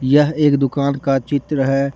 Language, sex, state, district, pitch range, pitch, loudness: Hindi, male, Jharkhand, Deoghar, 135-145 Hz, 140 Hz, -17 LUFS